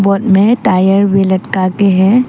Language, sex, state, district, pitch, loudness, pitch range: Hindi, female, Arunachal Pradesh, Papum Pare, 195 Hz, -11 LUFS, 190-200 Hz